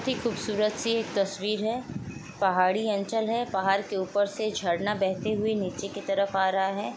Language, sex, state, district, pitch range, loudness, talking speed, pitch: Hindi, female, Bihar, Lakhisarai, 190-215 Hz, -28 LUFS, 180 wpm, 200 Hz